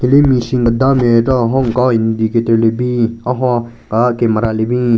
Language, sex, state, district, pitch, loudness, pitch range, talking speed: Rengma, male, Nagaland, Kohima, 120 Hz, -14 LUFS, 115-125 Hz, 180 wpm